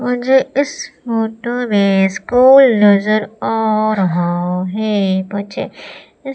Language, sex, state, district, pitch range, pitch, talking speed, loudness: Hindi, female, Madhya Pradesh, Umaria, 195-245 Hz, 215 Hz, 95 wpm, -14 LUFS